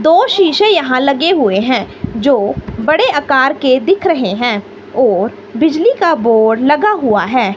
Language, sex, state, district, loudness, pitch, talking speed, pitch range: Hindi, female, Himachal Pradesh, Shimla, -12 LUFS, 275 Hz, 160 wpm, 230-340 Hz